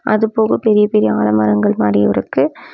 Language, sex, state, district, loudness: Tamil, female, Tamil Nadu, Namakkal, -14 LUFS